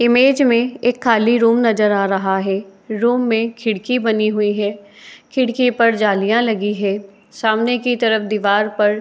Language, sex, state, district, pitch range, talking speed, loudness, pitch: Hindi, female, Uttar Pradesh, Etah, 205-240 Hz, 175 wpm, -17 LUFS, 220 Hz